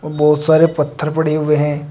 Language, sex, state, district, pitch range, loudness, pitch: Hindi, male, Uttar Pradesh, Shamli, 150-155 Hz, -15 LUFS, 150 Hz